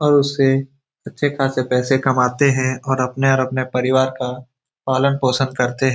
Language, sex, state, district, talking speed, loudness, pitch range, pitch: Hindi, male, Bihar, Lakhisarai, 160 wpm, -18 LUFS, 130-135 Hz, 130 Hz